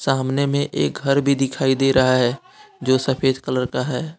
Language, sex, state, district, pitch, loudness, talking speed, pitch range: Hindi, male, Jharkhand, Deoghar, 135 Hz, -20 LUFS, 200 wpm, 130-140 Hz